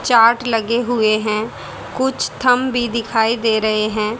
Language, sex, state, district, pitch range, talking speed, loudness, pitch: Hindi, female, Haryana, Rohtak, 215-245 Hz, 155 wpm, -17 LUFS, 230 Hz